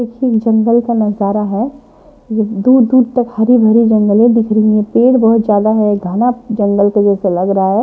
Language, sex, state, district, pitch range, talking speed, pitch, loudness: Hindi, female, Punjab, Pathankot, 210-240 Hz, 205 wpm, 220 Hz, -12 LUFS